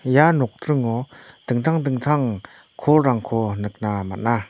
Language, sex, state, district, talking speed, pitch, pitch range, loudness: Garo, male, Meghalaya, North Garo Hills, 95 wpm, 125 Hz, 110-145 Hz, -21 LUFS